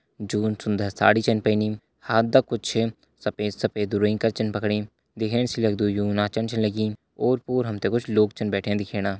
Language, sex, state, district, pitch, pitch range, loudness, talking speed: Garhwali, male, Uttarakhand, Uttarkashi, 105 Hz, 105-115 Hz, -24 LUFS, 175 wpm